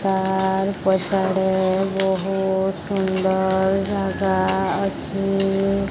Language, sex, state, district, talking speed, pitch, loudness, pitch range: Odia, male, Odisha, Sambalpur, 60 wpm, 190 Hz, -20 LUFS, 190-195 Hz